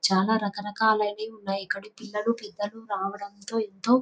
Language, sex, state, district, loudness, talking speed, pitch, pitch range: Telugu, female, Telangana, Nalgonda, -28 LUFS, 135 wpm, 210 Hz, 200-220 Hz